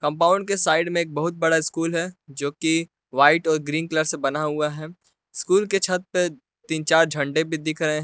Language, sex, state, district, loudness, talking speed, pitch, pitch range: Hindi, male, Jharkhand, Palamu, -22 LUFS, 215 wpm, 160 Hz, 155-170 Hz